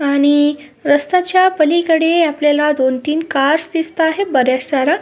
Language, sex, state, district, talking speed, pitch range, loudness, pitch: Marathi, female, Maharashtra, Sindhudurg, 145 wpm, 285-330 Hz, -14 LUFS, 300 Hz